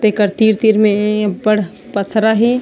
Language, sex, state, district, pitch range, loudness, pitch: Chhattisgarhi, female, Chhattisgarh, Sarguja, 205-220 Hz, -14 LUFS, 215 Hz